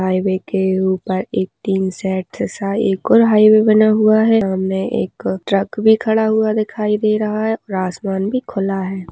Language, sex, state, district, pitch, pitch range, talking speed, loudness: Hindi, female, Jharkhand, Sahebganj, 195 Hz, 190-215 Hz, 185 wpm, -16 LUFS